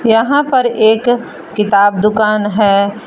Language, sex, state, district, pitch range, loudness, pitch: Hindi, female, Jharkhand, Palamu, 205-235 Hz, -12 LUFS, 215 Hz